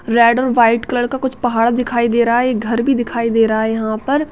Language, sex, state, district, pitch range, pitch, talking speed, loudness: Hindi, female, Uttarakhand, Tehri Garhwal, 230-250 Hz, 235 Hz, 275 wpm, -15 LUFS